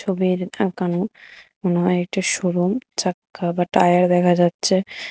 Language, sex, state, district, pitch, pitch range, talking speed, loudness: Bengali, female, Tripura, West Tripura, 180 Hz, 175-190 Hz, 130 wpm, -20 LUFS